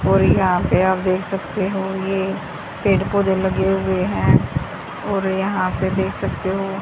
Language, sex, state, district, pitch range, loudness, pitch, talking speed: Hindi, female, Haryana, Charkhi Dadri, 190-195 Hz, -20 LUFS, 190 Hz, 160 wpm